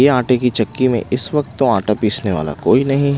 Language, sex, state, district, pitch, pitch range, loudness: Hindi, male, Punjab, Pathankot, 125 Hz, 110-135 Hz, -16 LUFS